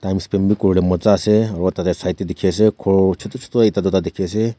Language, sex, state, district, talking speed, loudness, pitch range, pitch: Nagamese, male, Nagaland, Kohima, 220 wpm, -18 LUFS, 95-105 Hz, 95 Hz